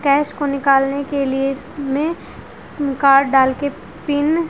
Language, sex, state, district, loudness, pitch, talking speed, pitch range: Hindi, female, Haryana, Rohtak, -18 LUFS, 280 Hz, 135 wpm, 275-290 Hz